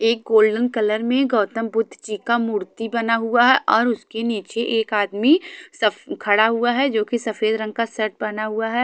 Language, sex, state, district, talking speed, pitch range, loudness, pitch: Hindi, female, Haryana, Charkhi Dadri, 190 wpm, 215-235 Hz, -20 LUFS, 225 Hz